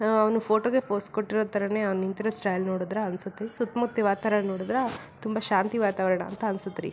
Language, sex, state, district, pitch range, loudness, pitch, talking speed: Kannada, female, Karnataka, Belgaum, 195-220 Hz, -27 LUFS, 210 Hz, 165 wpm